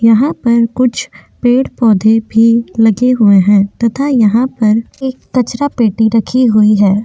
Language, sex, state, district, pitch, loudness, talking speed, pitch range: Hindi, female, Uttar Pradesh, Jyotiba Phule Nagar, 230 Hz, -11 LUFS, 145 wpm, 220-250 Hz